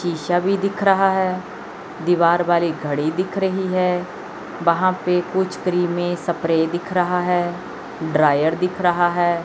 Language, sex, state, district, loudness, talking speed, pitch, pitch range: Hindi, male, Chandigarh, Chandigarh, -20 LUFS, 145 wpm, 175 Hz, 170-185 Hz